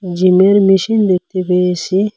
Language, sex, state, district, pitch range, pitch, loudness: Bengali, male, Assam, Hailakandi, 180-195 Hz, 185 Hz, -13 LUFS